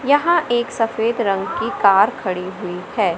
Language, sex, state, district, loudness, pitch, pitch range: Hindi, male, Madhya Pradesh, Katni, -18 LUFS, 215 Hz, 185-240 Hz